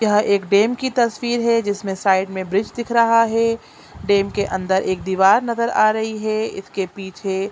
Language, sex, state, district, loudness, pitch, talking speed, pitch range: Hindi, female, Chhattisgarh, Raigarh, -19 LUFS, 205 Hz, 190 wpm, 195-230 Hz